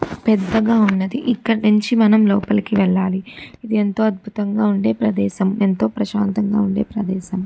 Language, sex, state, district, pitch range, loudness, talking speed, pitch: Telugu, female, Andhra Pradesh, Chittoor, 190-215 Hz, -18 LUFS, 120 wpm, 205 Hz